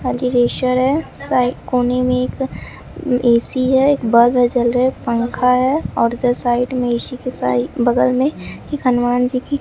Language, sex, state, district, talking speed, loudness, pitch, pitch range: Hindi, male, Bihar, Katihar, 170 wpm, -17 LUFS, 250 Hz, 245-255 Hz